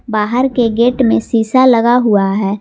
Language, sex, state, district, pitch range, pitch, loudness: Hindi, female, Jharkhand, Garhwa, 210-245 Hz, 230 Hz, -12 LUFS